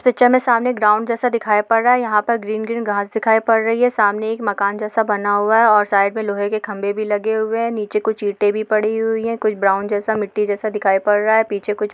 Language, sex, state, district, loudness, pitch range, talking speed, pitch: Hindi, female, Bihar, Saharsa, -17 LUFS, 205-225 Hz, 270 wpm, 215 Hz